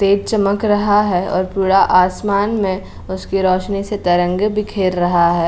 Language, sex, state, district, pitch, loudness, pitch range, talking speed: Hindi, female, Bihar, Patna, 195 Hz, -16 LUFS, 185-205 Hz, 165 wpm